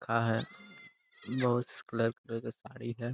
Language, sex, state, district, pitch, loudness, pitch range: Hindi, male, Bihar, Jamui, 115 Hz, -33 LUFS, 115-125 Hz